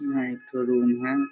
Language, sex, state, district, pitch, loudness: Hindi, male, Bihar, Darbhanga, 140 Hz, -25 LUFS